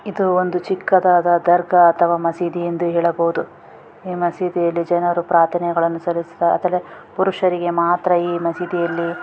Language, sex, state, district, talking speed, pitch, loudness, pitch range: Kannada, female, Karnataka, Raichur, 115 wpm, 175 Hz, -18 LUFS, 170-180 Hz